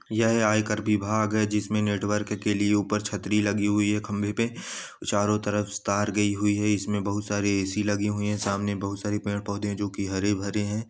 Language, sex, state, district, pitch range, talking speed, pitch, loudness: Angika, male, Bihar, Samastipur, 100-105 Hz, 205 wpm, 105 Hz, -26 LUFS